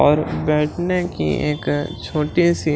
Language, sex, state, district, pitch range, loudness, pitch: Hindi, male, Chhattisgarh, Raipur, 150-170 Hz, -20 LUFS, 150 Hz